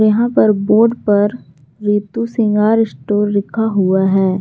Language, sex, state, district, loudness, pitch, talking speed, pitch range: Hindi, female, Jharkhand, Garhwa, -15 LUFS, 210 Hz, 135 wpm, 195-225 Hz